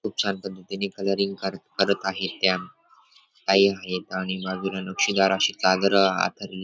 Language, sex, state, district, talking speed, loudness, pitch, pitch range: Marathi, male, Maharashtra, Dhule, 145 wpm, -24 LUFS, 95 Hz, 95-100 Hz